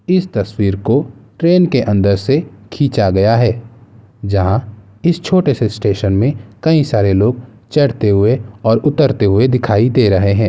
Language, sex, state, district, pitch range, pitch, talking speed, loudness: Hindi, male, Bihar, Gaya, 100-140 Hz, 115 Hz, 160 wpm, -14 LUFS